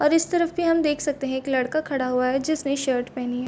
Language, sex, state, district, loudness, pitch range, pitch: Hindi, female, Chhattisgarh, Bilaspur, -23 LUFS, 255-310 Hz, 275 Hz